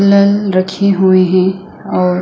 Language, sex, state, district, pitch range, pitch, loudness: Hindi, female, Chhattisgarh, Sukma, 185-200 Hz, 190 Hz, -12 LUFS